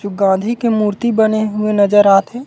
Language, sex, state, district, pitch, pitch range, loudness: Chhattisgarhi, male, Chhattisgarh, Raigarh, 210 Hz, 200-225 Hz, -14 LUFS